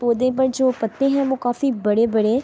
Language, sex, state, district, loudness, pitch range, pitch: Urdu, female, Andhra Pradesh, Anantapur, -20 LUFS, 230-265 Hz, 255 Hz